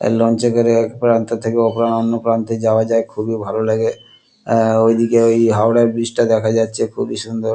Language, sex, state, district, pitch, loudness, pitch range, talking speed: Bengali, male, West Bengal, Kolkata, 115 Hz, -16 LUFS, 110-115 Hz, 205 wpm